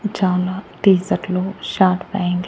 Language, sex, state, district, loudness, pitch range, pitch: Telugu, male, Andhra Pradesh, Annamaya, -19 LUFS, 180-195 Hz, 185 Hz